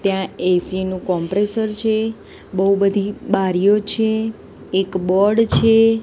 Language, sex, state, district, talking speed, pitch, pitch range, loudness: Gujarati, female, Gujarat, Gandhinagar, 120 wpm, 200 Hz, 190-220 Hz, -18 LUFS